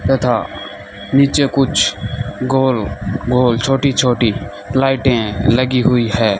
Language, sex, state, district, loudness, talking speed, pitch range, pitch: Hindi, male, Rajasthan, Bikaner, -15 LUFS, 105 wpm, 105-135 Hz, 125 Hz